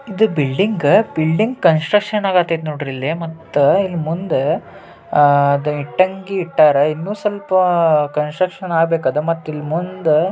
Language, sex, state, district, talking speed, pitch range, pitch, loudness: Kannada, male, Karnataka, Dharwad, 120 wpm, 150-190 Hz, 165 Hz, -17 LUFS